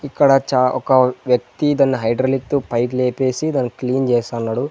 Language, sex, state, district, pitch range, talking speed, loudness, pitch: Telugu, male, Andhra Pradesh, Sri Satya Sai, 125-135 Hz, 155 wpm, -18 LUFS, 130 Hz